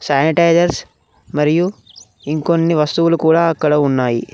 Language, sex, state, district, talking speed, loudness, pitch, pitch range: Telugu, male, Telangana, Mahabubabad, 95 wpm, -15 LUFS, 155 Hz, 140-170 Hz